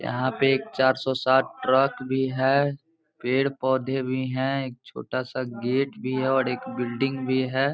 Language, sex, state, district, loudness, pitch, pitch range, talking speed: Hindi, male, Bihar, Muzaffarpur, -25 LUFS, 130 Hz, 130-135 Hz, 185 wpm